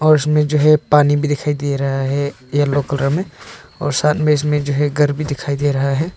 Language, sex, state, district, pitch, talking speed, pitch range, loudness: Hindi, male, Arunachal Pradesh, Papum Pare, 145 Hz, 235 wpm, 140-150 Hz, -17 LUFS